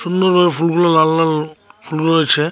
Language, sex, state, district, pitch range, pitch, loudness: Bengali, male, Tripura, Unakoti, 155-175 Hz, 165 Hz, -14 LUFS